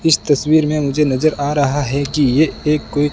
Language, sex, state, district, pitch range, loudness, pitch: Hindi, male, Rajasthan, Bikaner, 140-150 Hz, -16 LUFS, 150 Hz